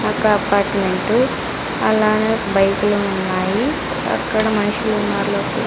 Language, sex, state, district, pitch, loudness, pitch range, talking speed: Telugu, female, Andhra Pradesh, Sri Satya Sai, 210 Hz, -18 LUFS, 200-220 Hz, 85 wpm